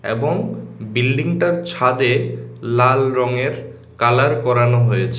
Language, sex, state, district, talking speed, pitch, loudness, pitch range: Bengali, male, Tripura, West Tripura, 105 wpm, 125 Hz, -17 LUFS, 120-135 Hz